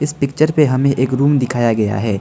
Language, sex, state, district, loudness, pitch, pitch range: Hindi, male, Arunachal Pradesh, Lower Dibang Valley, -15 LUFS, 130 Hz, 120-145 Hz